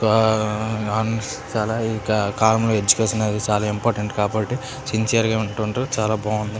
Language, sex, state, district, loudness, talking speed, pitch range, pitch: Telugu, male, Andhra Pradesh, Krishna, -21 LUFS, 120 wpm, 105-110 Hz, 110 Hz